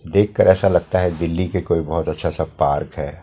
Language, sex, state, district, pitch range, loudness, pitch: Hindi, male, Delhi, New Delhi, 80-90 Hz, -19 LUFS, 85 Hz